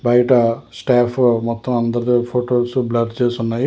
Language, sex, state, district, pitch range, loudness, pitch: Telugu, male, Telangana, Hyderabad, 115-125 Hz, -17 LUFS, 120 Hz